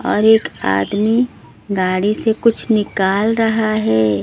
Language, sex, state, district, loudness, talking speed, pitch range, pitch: Hindi, female, Odisha, Sambalpur, -16 LUFS, 130 wpm, 190-220 Hz, 215 Hz